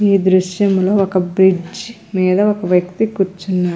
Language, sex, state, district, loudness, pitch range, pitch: Telugu, female, Andhra Pradesh, Krishna, -15 LUFS, 185-200 Hz, 190 Hz